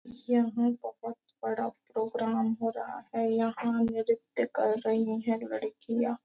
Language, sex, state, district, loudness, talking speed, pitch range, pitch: Hindi, female, Bihar, Gopalganj, -31 LUFS, 125 wpm, 220-235 Hz, 230 Hz